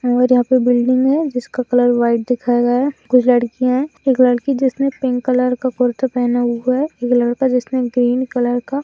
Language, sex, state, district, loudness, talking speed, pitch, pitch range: Hindi, female, Bihar, Saharsa, -16 LUFS, 205 wpm, 250 Hz, 245-260 Hz